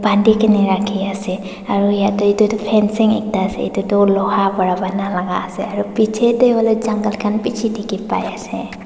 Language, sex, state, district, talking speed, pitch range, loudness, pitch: Nagamese, female, Nagaland, Dimapur, 175 wpm, 195-215 Hz, -17 LUFS, 205 Hz